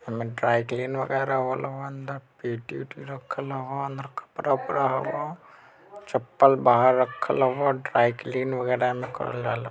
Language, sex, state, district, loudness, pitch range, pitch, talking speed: Bajjika, male, Bihar, Vaishali, -25 LUFS, 125-135 Hz, 130 Hz, 160 wpm